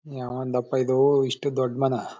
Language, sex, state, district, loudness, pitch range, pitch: Kannada, male, Karnataka, Mysore, -24 LUFS, 125-135 Hz, 130 Hz